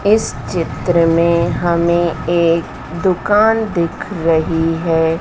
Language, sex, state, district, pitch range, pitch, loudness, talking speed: Hindi, female, Madhya Pradesh, Dhar, 165-175 Hz, 170 Hz, -15 LUFS, 105 wpm